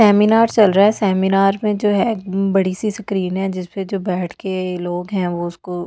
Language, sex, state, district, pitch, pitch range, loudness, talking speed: Hindi, female, Delhi, New Delhi, 195 Hz, 185-205 Hz, -18 LUFS, 225 wpm